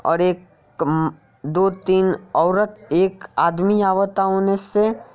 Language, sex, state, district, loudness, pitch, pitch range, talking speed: Bhojpuri, male, Bihar, Saran, -19 LUFS, 185 Hz, 165-195 Hz, 130 wpm